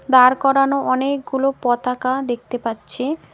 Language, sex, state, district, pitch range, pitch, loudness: Bengali, female, West Bengal, Cooch Behar, 245-275 Hz, 255 Hz, -19 LUFS